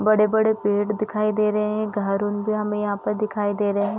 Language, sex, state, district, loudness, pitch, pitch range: Hindi, female, Chhattisgarh, Bilaspur, -22 LUFS, 210 Hz, 205-215 Hz